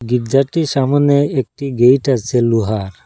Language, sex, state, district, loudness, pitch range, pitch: Bengali, male, Assam, Hailakandi, -15 LUFS, 120-140 Hz, 130 Hz